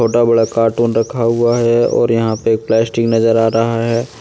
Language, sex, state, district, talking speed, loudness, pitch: Hindi, male, Jharkhand, Deoghar, 215 wpm, -14 LUFS, 115 Hz